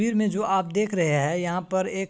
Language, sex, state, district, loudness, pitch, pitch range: Hindi, male, Bihar, Madhepura, -25 LUFS, 190 Hz, 175-210 Hz